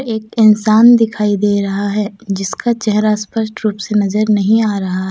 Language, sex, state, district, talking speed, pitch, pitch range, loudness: Hindi, female, Jharkhand, Deoghar, 175 wpm, 210 Hz, 205-220 Hz, -14 LUFS